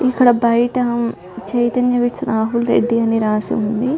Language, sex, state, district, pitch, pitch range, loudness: Telugu, female, Andhra Pradesh, Chittoor, 235 Hz, 230-245 Hz, -17 LUFS